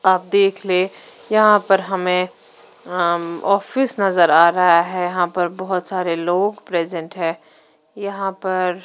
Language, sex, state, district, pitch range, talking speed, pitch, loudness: Hindi, female, Punjab, Fazilka, 170-195 Hz, 140 wpm, 180 Hz, -18 LUFS